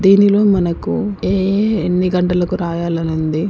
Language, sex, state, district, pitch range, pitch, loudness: Telugu, female, Telangana, Karimnagar, 170-200 Hz, 180 Hz, -16 LUFS